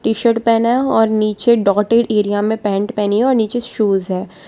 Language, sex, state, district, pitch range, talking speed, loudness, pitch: Hindi, female, Gujarat, Valsad, 205-235 Hz, 215 wpm, -15 LUFS, 220 Hz